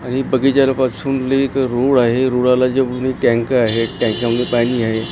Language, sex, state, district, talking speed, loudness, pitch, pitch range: Marathi, male, Maharashtra, Gondia, 175 wpm, -16 LUFS, 125 Hz, 120-135 Hz